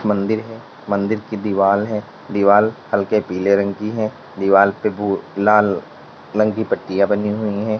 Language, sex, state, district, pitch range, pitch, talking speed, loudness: Hindi, male, Uttar Pradesh, Lalitpur, 100-105 Hz, 105 Hz, 170 wpm, -18 LUFS